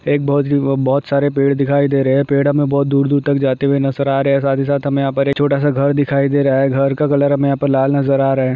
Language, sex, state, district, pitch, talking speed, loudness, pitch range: Hindi, male, Andhra Pradesh, Chittoor, 140 Hz, 330 wpm, -15 LUFS, 135-140 Hz